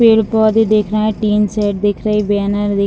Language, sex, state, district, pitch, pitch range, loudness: Hindi, female, Bihar, Muzaffarpur, 210 Hz, 205-215 Hz, -14 LUFS